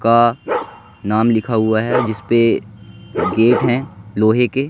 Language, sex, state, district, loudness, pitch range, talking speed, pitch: Hindi, male, Madhya Pradesh, Katni, -16 LUFS, 110-120 Hz, 125 wpm, 115 Hz